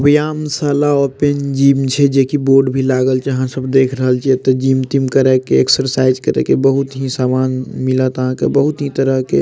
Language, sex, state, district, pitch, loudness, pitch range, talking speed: Maithili, male, Bihar, Madhepura, 135 Hz, -14 LUFS, 130-140 Hz, 190 wpm